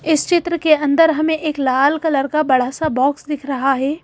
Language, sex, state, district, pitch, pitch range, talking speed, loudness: Hindi, female, Madhya Pradesh, Bhopal, 300 Hz, 275-315 Hz, 225 wpm, -17 LUFS